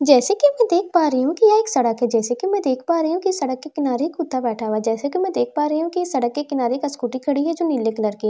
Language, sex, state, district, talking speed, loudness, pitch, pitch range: Hindi, female, Bihar, Katihar, 355 wpm, -20 LUFS, 285 Hz, 245-335 Hz